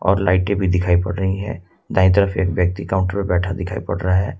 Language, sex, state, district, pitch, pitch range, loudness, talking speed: Hindi, male, Jharkhand, Ranchi, 95 Hz, 90-100 Hz, -19 LUFS, 245 wpm